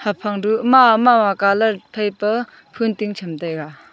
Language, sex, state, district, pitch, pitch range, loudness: Wancho, female, Arunachal Pradesh, Longding, 210 Hz, 200-225 Hz, -17 LUFS